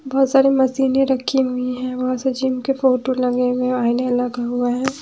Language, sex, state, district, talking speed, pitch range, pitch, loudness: Hindi, female, Haryana, Jhajjar, 190 wpm, 250-265 Hz, 255 Hz, -19 LUFS